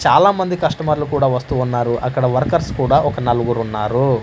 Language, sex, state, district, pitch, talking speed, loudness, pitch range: Telugu, male, Andhra Pradesh, Manyam, 130 Hz, 140 wpm, -17 LUFS, 120-150 Hz